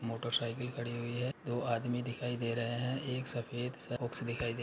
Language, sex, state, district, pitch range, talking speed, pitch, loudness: Hindi, male, Uttar Pradesh, Muzaffarnagar, 120-125 Hz, 195 wpm, 120 Hz, -37 LUFS